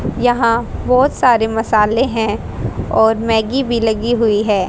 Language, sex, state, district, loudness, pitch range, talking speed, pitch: Hindi, female, Haryana, Rohtak, -15 LUFS, 220-245 Hz, 140 wpm, 225 Hz